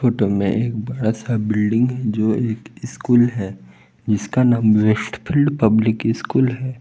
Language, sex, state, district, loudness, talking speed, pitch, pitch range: Hindi, male, Jharkhand, Palamu, -19 LUFS, 150 wpm, 110 Hz, 110-120 Hz